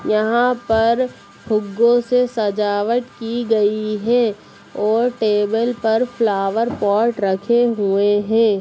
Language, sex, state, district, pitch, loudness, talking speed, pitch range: Hindi, female, Bihar, Samastipur, 225 Hz, -18 LUFS, 105 wpm, 210-235 Hz